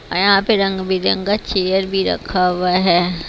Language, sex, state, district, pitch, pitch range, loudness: Hindi, female, Haryana, Rohtak, 190 Hz, 180-195 Hz, -17 LUFS